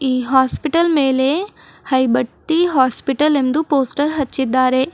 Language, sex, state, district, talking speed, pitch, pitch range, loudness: Kannada, female, Karnataka, Bidar, 95 wpm, 270 Hz, 260-300 Hz, -16 LUFS